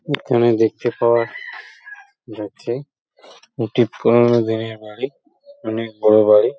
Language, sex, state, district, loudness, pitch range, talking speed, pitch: Bengali, male, West Bengal, Purulia, -18 LUFS, 110-135 Hz, 110 wpm, 120 Hz